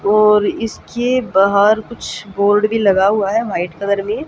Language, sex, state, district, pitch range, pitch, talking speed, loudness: Hindi, female, Haryana, Jhajjar, 200-225 Hz, 210 Hz, 170 wpm, -15 LUFS